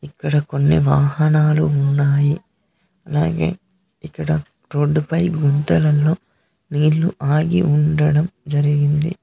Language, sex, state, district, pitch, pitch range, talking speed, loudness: Telugu, male, Telangana, Mahabubabad, 150 Hz, 145-165 Hz, 80 wpm, -18 LUFS